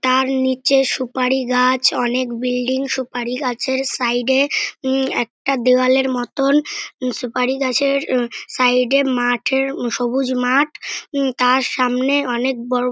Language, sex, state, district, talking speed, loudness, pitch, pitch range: Bengali, male, West Bengal, North 24 Parganas, 125 wpm, -18 LUFS, 255 Hz, 250-270 Hz